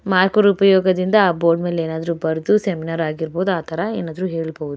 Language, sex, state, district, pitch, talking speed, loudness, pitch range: Kannada, female, Karnataka, Bellary, 175 Hz, 150 wpm, -18 LUFS, 160-195 Hz